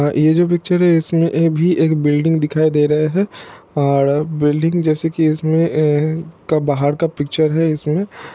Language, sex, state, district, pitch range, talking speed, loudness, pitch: Hindi, male, Bihar, Sitamarhi, 150-165 Hz, 160 wpm, -16 LUFS, 155 Hz